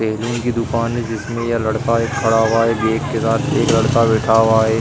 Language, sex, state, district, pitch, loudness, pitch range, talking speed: Hindi, male, Uttar Pradesh, Hamirpur, 115 Hz, -17 LUFS, 110-115 Hz, 225 wpm